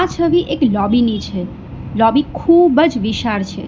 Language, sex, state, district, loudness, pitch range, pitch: Gujarati, female, Gujarat, Valsad, -15 LUFS, 215-335 Hz, 240 Hz